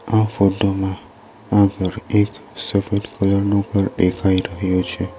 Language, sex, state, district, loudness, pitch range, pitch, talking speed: Gujarati, male, Gujarat, Valsad, -19 LUFS, 95-105 Hz, 100 Hz, 140 wpm